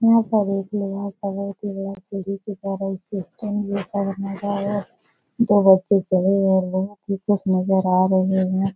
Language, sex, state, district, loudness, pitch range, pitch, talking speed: Hindi, female, Bihar, Jahanabad, -22 LUFS, 190-205 Hz, 195 Hz, 135 wpm